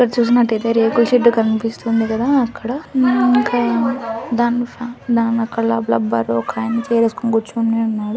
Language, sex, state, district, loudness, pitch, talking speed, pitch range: Telugu, female, Andhra Pradesh, Anantapur, -17 LUFS, 230 Hz, 140 wpm, 225-240 Hz